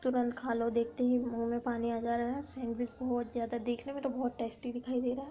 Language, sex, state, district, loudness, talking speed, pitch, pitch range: Hindi, female, Uttar Pradesh, Budaun, -35 LUFS, 270 wpm, 245 Hz, 235-250 Hz